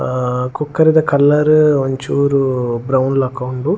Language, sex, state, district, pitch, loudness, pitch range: Tulu, male, Karnataka, Dakshina Kannada, 135 Hz, -15 LUFS, 130-150 Hz